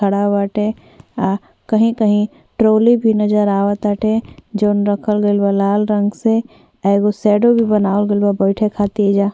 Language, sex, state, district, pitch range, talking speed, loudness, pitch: Bhojpuri, female, Uttar Pradesh, Ghazipur, 205-215 Hz, 175 wpm, -16 LUFS, 210 Hz